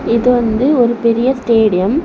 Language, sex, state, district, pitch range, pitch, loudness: Tamil, female, Tamil Nadu, Kanyakumari, 230-255 Hz, 235 Hz, -13 LUFS